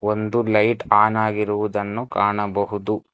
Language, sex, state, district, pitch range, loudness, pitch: Kannada, male, Karnataka, Bangalore, 105-110 Hz, -20 LUFS, 105 Hz